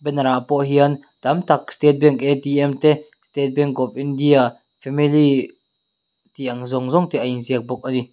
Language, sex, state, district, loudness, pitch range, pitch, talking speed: Mizo, male, Mizoram, Aizawl, -19 LUFS, 130-145 Hz, 140 Hz, 175 wpm